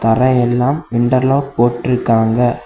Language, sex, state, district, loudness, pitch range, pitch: Tamil, male, Tamil Nadu, Kanyakumari, -14 LUFS, 120-130 Hz, 125 Hz